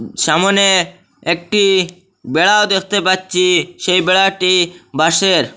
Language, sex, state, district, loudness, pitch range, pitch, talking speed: Bengali, male, Assam, Hailakandi, -13 LUFS, 180-195 Hz, 185 Hz, 85 wpm